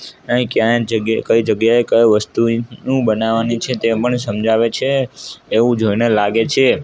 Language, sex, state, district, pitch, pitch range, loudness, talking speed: Gujarati, male, Gujarat, Gandhinagar, 115 Hz, 110-120 Hz, -16 LUFS, 160 wpm